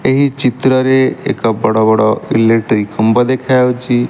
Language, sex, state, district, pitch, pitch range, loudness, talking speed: Odia, male, Odisha, Malkangiri, 120 Hz, 110-130 Hz, -12 LUFS, 115 wpm